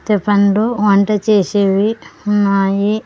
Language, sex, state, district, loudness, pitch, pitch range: Telugu, female, Andhra Pradesh, Sri Satya Sai, -14 LUFS, 205 Hz, 200-210 Hz